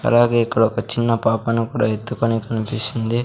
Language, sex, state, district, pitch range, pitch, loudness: Telugu, male, Andhra Pradesh, Sri Satya Sai, 115-120 Hz, 115 Hz, -19 LUFS